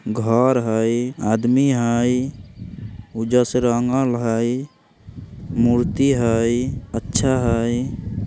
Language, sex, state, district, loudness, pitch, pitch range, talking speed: Bajjika, male, Bihar, Vaishali, -19 LUFS, 120 Hz, 115-125 Hz, 85 wpm